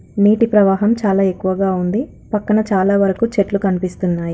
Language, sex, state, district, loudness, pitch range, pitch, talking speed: Telugu, female, Telangana, Karimnagar, -16 LUFS, 190-210 Hz, 200 Hz, 140 wpm